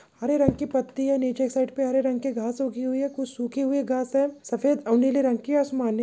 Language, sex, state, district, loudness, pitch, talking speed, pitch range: Marwari, female, Rajasthan, Nagaur, -25 LUFS, 265 Hz, 280 wpm, 255-275 Hz